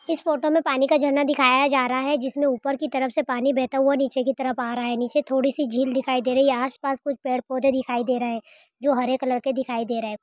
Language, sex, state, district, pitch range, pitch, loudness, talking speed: Hindi, female, Rajasthan, Churu, 255-280 Hz, 265 Hz, -23 LUFS, 295 wpm